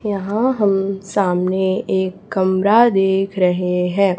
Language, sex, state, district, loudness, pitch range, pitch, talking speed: Hindi, female, Chhattisgarh, Raipur, -17 LUFS, 185-200 Hz, 195 Hz, 115 wpm